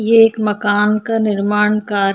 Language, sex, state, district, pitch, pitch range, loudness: Hindi, female, Chhattisgarh, Korba, 210 Hz, 205-215 Hz, -15 LUFS